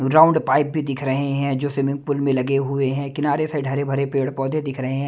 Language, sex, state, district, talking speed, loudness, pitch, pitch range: Hindi, male, Haryana, Jhajjar, 250 wpm, -21 LUFS, 140 Hz, 135-145 Hz